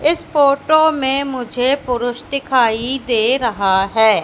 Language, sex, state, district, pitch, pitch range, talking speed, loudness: Hindi, female, Madhya Pradesh, Katni, 255 Hz, 235-280 Hz, 125 wpm, -16 LUFS